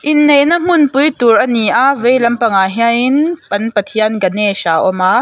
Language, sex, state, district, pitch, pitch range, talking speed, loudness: Mizo, female, Mizoram, Aizawl, 235 Hz, 205-280 Hz, 185 wpm, -12 LUFS